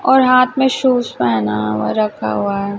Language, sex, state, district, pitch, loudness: Hindi, female, Chhattisgarh, Raipur, 205 Hz, -15 LUFS